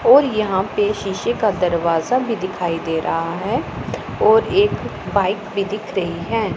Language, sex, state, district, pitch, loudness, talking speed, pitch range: Hindi, female, Punjab, Pathankot, 200 Hz, -19 LUFS, 165 wpm, 180-230 Hz